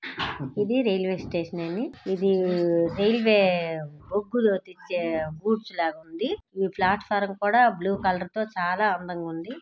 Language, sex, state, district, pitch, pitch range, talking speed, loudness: Telugu, female, Andhra Pradesh, Srikakulam, 190 Hz, 175-210 Hz, 110 wpm, -25 LUFS